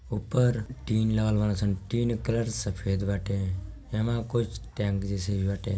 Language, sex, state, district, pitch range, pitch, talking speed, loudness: Bhojpuri, male, Bihar, Gopalganj, 100-115 Hz, 105 Hz, 175 wpm, -29 LUFS